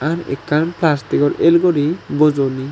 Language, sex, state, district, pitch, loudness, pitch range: Chakma, male, Tripura, Unakoti, 150 Hz, -16 LUFS, 145-165 Hz